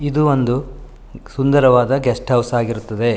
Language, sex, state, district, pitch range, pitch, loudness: Kannada, male, Karnataka, Shimoga, 120-135 Hz, 125 Hz, -16 LUFS